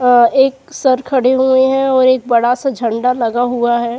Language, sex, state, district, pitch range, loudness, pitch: Hindi, female, Uttar Pradesh, Jyotiba Phule Nagar, 240-260 Hz, -13 LUFS, 255 Hz